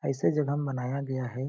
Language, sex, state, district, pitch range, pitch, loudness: Hindi, male, Chhattisgarh, Balrampur, 130-145 Hz, 135 Hz, -30 LUFS